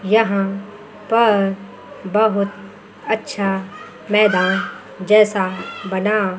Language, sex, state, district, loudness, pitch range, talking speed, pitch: Hindi, female, Chandigarh, Chandigarh, -18 LUFS, 195-215 Hz, 65 wpm, 200 Hz